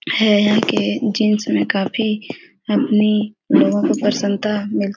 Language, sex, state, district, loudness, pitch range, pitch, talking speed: Hindi, female, Bihar, Jahanabad, -17 LUFS, 205-215 Hz, 210 Hz, 145 wpm